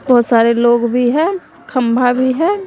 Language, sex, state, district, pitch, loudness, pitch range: Hindi, female, Bihar, West Champaran, 250 Hz, -14 LUFS, 240-325 Hz